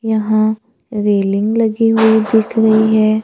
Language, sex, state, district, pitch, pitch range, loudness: Hindi, female, Maharashtra, Gondia, 220 Hz, 215-225 Hz, -13 LUFS